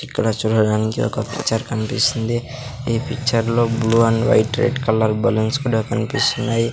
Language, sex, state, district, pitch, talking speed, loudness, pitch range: Telugu, male, Andhra Pradesh, Sri Satya Sai, 115 Hz, 145 wpm, -19 LUFS, 110-120 Hz